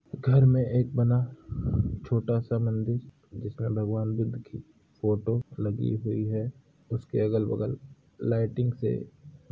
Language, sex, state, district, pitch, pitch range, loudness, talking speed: Hindi, male, Uttar Pradesh, Hamirpur, 115 Hz, 110-130 Hz, -28 LUFS, 130 wpm